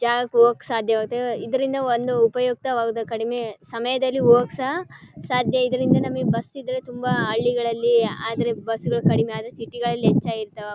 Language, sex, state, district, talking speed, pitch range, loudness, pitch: Kannada, female, Karnataka, Bellary, 140 wpm, 225-250 Hz, -22 LUFS, 235 Hz